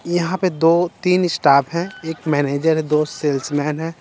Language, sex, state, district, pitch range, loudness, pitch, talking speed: Hindi, male, Bihar, Patna, 150-175 Hz, -18 LUFS, 160 Hz, 180 wpm